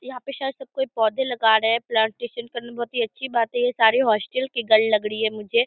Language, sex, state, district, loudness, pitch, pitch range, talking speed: Hindi, female, Bihar, Purnia, -22 LUFS, 235 Hz, 220-250 Hz, 245 wpm